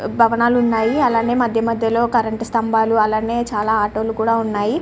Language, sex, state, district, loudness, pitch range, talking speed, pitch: Telugu, female, Andhra Pradesh, Srikakulam, -17 LUFS, 220-235 Hz, 160 wpm, 225 Hz